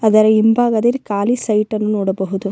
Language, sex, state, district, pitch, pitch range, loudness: Kannada, female, Karnataka, Bellary, 215 Hz, 200-225 Hz, -16 LUFS